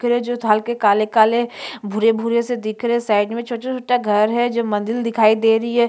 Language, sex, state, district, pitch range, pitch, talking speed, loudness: Hindi, female, Chhattisgarh, Jashpur, 215-240 Hz, 235 Hz, 265 wpm, -18 LUFS